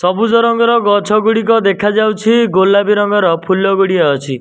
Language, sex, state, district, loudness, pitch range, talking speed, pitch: Odia, male, Odisha, Nuapada, -12 LUFS, 190-225 Hz, 110 wpm, 205 Hz